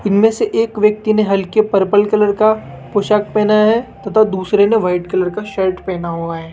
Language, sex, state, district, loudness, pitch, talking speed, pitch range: Hindi, female, Rajasthan, Jaipur, -15 LUFS, 205 Hz, 200 wpm, 190-215 Hz